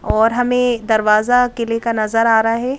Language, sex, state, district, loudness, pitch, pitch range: Hindi, female, Madhya Pradesh, Bhopal, -15 LUFS, 230 Hz, 225-245 Hz